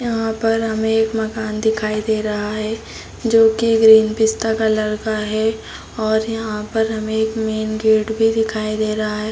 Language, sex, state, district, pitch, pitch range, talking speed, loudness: Hindi, female, Bihar, Saran, 220 Hz, 215-225 Hz, 185 wpm, -18 LUFS